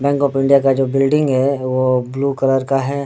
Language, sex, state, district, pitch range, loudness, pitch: Hindi, male, Bihar, Darbhanga, 135-140 Hz, -16 LUFS, 135 Hz